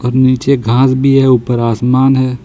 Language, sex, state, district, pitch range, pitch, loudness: Hindi, male, Jharkhand, Ranchi, 125-135 Hz, 130 Hz, -11 LUFS